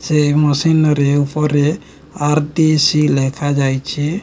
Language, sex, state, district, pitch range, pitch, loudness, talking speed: Odia, male, Odisha, Nuapada, 145-155 Hz, 150 Hz, -15 LUFS, 70 wpm